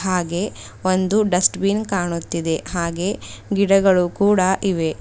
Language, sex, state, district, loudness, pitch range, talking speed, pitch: Kannada, female, Karnataka, Bidar, -19 LUFS, 175-195 Hz, 110 wpm, 185 Hz